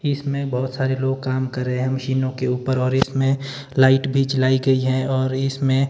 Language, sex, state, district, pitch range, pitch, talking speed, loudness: Hindi, male, Himachal Pradesh, Shimla, 130-135 Hz, 130 Hz, 195 wpm, -20 LUFS